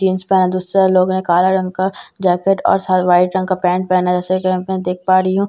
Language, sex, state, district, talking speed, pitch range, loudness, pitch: Hindi, female, Bihar, Katihar, 285 wpm, 185-190 Hz, -15 LUFS, 185 Hz